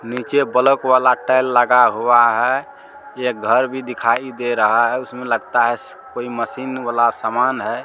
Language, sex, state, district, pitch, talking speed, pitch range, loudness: Maithili, male, Bihar, Supaul, 125 Hz, 170 wpm, 120-130 Hz, -17 LUFS